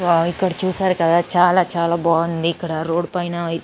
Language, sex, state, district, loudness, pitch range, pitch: Telugu, female, Andhra Pradesh, Anantapur, -19 LUFS, 165-180 Hz, 170 Hz